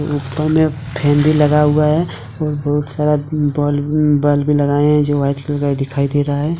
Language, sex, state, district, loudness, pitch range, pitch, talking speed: Hindi, male, Jharkhand, Deoghar, -16 LUFS, 145-150 Hz, 145 Hz, 210 wpm